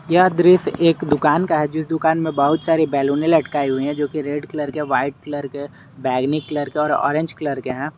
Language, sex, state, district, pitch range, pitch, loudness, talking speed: Hindi, male, Jharkhand, Garhwa, 145-160 Hz, 150 Hz, -19 LUFS, 235 wpm